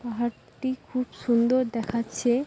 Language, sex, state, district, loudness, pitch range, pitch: Bengali, female, West Bengal, Jhargram, -27 LUFS, 235-255 Hz, 240 Hz